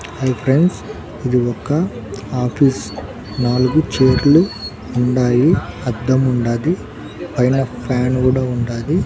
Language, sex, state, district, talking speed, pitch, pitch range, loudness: Telugu, male, Andhra Pradesh, Annamaya, 95 wpm, 125 Hz, 120-135 Hz, -17 LUFS